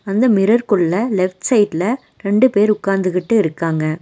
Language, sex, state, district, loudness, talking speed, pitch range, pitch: Tamil, female, Tamil Nadu, Nilgiris, -16 LUFS, 135 wpm, 180-220 Hz, 200 Hz